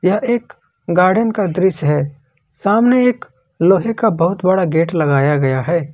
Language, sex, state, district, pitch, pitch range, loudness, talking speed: Hindi, male, Jharkhand, Ranchi, 180 Hz, 150-205 Hz, -15 LUFS, 160 wpm